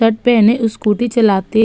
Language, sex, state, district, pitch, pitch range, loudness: Hindi, female, Uttar Pradesh, Budaun, 225 Hz, 215-235 Hz, -14 LUFS